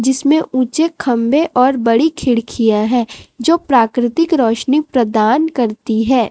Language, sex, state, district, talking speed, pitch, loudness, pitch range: Hindi, female, Chhattisgarh, Raipur, 125 wpm, 250 Hz, -14 LUFS, 230-295 Hz